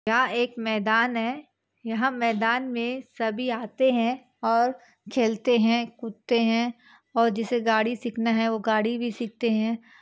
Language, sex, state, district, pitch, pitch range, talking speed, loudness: Hindi, female, Chhattisgarh, Bastar, 235 Hz, 225-245 Hz, 155 wpm, -25 LUFS